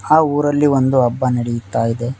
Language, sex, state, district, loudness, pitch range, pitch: Kannada, male, Karnataka, Koppal, -16 LUFS, 120-145 Hz, 130 Hz